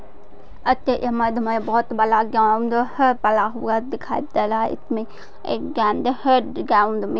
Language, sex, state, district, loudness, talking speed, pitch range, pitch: Hindi, female, Maharashtra, Sindhudurg, -20 LUFS, 165 wpm, 215-245 Hz, 225 Hz